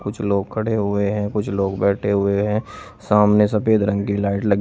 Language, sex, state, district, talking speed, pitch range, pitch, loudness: Hindi, male, Uttar Pradesh, Shamli, 210 wpm, 100-105 Hz, 100 Hz, -19 LUFS